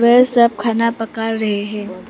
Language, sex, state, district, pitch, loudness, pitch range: Hindi, female, Arunachal Pradesh, Papum Pare, 225 Hz, -16 LUFS, 210-235 Hz